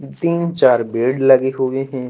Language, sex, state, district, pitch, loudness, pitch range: Hindi, male, Jharkhand, Ranchi, 130 Hz, -16 LUFS, 125-140 Hz